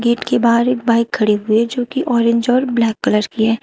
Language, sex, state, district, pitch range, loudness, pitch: Hindi, female, Uttar Pradesh, Shamli, 225-245 Hz, -16 LUFS, 235 Hz